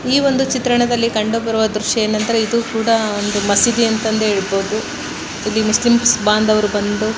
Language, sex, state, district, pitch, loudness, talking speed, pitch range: Kannada, male, Karnataka, Mysore, 220 Hz, -16 LUFS, 150 wpm, 215-235 Hz